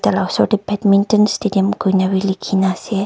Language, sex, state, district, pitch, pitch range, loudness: Nagamese, male, Nagaland, Kohima, 195 Hz, 190-205 Hz, -16 LUFS